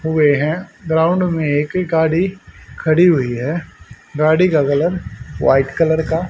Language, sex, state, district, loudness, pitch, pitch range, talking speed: Hindi, male, Haryana, Rohtak, -16 LUFS, 160 Hz, 155-175 Hz, 155 wpm